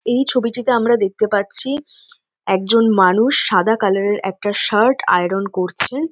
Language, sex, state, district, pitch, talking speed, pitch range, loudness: Bengali, female, West Bengal, North 24 Parganas, 215 Hz, 135 wpm, 195-250 Hz, -15 LUFS